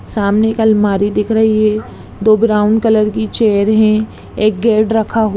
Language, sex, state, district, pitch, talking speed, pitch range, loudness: Hindi, female, Bihar, Darbhanga, 215 Hz, 190 wpm, 210-220 Hz, -13 LUFS